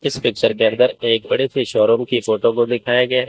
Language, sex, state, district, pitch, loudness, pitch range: Hindi, male, Chandigarh, Chandigarh, 120 Hz, -17 LUFS, 115-125 Hz